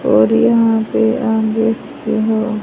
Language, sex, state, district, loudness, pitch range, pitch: Hindi, female, Haryana, Jhajjar, -15 LUFS, 215-225 Hz, 220 Hz